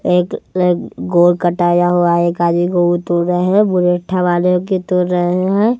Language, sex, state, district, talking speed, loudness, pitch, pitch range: Hindi, male, Bihar, West Champaran, 165 wpm, -14 LUFS, 180 Hz, 175-180 Hz